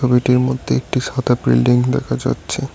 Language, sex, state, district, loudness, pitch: Bengali, male, West Bengal, Cooch Behar, -17 LUFS, 125 Hz